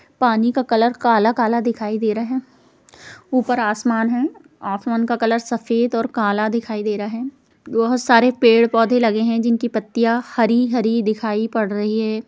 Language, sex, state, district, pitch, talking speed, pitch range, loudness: Hindi, female, Bihar, Jamui, 230 Hz, 160 wpm, 220-240 Hz, -18 LUFS